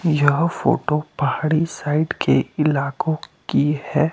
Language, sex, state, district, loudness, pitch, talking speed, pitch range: Hindi, male, Himachal Pradesh, Shimla, -20 LUFS, 150 Hz, 115 wpm, 145-160 Hz